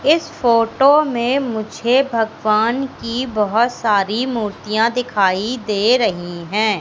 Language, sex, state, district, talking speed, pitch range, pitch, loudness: Hindi, female, Madhya Pradesh, Katni, 115 wpm, 215-250 Hz, 230 Hz, -17 LUFS